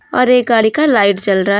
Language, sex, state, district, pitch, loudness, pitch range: Hindi, female, Jharkhand, Deoghar, 220 Hz, -12 LUFS, 200-250 Hz